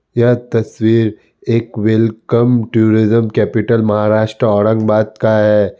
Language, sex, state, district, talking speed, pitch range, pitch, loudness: Hindi, male, Bihar, Kishanganj, 115 wpm, 110-115 Hz, 110 Hz, -13 LUFS